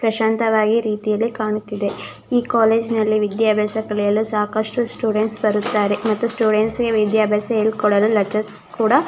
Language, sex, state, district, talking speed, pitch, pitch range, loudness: Kannada, female, Karnataka, Shimoga, 125 wpm, 215 Hz, 210-225 Hz, -19 LUFS